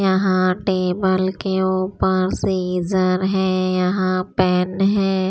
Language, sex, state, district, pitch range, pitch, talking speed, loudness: Hindi, female, Maharashtra, Washim, 185-190 Hz, 185 Hz, 100 wpm, -19 LUFS